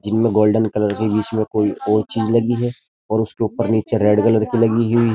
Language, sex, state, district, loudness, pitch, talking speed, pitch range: Hindi, male, Uttar Pradesh, Jyotiba Phule Nagar, -18 LUFS, 110 Hz, 245 wpm, 105-115 Hz